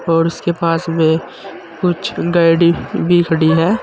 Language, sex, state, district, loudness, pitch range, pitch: Hindi, male, Uttar Pradesh, Saharanpur, -15 LUFS, 165-175 Hz, 165 Hz